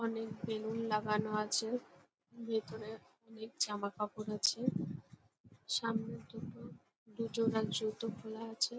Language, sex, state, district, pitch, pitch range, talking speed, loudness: Bengali, female, West Bengal, Jhargram, 220 Hz, 210-225 Hz, 100 wpm, -38 LUFS